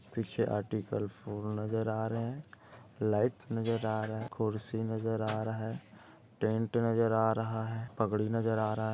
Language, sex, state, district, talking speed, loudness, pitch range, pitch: Hindi, male, Maharashtra, Dhule, 180 wpm, -34 LUFS, 110-115 Hz, 110 Hz